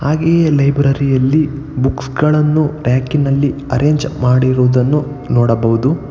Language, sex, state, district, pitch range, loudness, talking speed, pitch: Kannada, male, Karnataka, Bangalore, 130-150 Hz, -14 LUFS, 110 wpm, 140 Hz